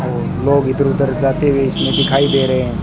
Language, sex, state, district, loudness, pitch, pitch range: Hindi, male, Rajasthan, Bikaner, -15 LUFS, 135 Hz, 135-140 Hz